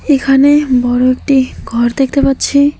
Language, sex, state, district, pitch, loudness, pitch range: Bengali, female, West Bengal, Alipurduar, 270 Hz, -11 LUFS, 255-280 Hz